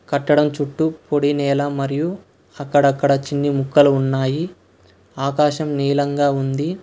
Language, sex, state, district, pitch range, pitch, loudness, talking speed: Telugu, male, Karnataka, Bangalore, 140-150 Hz, 145 Hz, -19 LUFS, 105 wpm